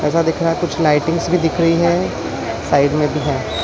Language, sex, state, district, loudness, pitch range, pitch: Hindi, female, Maharashtra, Mumbai Suburban, -17 LUFS, 150-170 Hz, 165 Hz